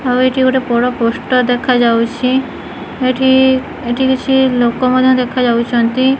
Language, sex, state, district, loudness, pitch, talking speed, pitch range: Odia, female, Odisha, Khordha, -13 LUFS, 255 Hz, 125 wpm, 240-260 Hz